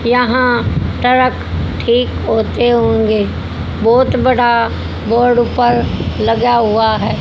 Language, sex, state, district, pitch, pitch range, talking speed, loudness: Hindi, female, Haryana, Rohtak, 240 Hz, 225-245 Hz, 100 wpm, -13 LUFS